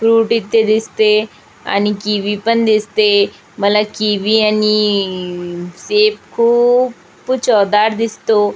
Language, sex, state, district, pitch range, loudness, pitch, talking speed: Marathi, female, Maharashtra, Aurangabad, 205-225 Hz, -14 LUFS, 215 Hz, 100 wpm